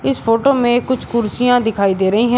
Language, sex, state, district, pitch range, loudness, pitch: Hindi, male, Uttar Pradesh, Shamli, 205-245 Hz, -15 LUFS, 235 Hz